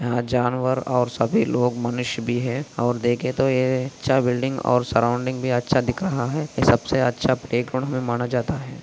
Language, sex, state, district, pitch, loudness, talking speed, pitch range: Hindi, male, Maharashtra, Aurangabad, 125 Hz, -22 LUFS, 195 wpm, 120-130 Hz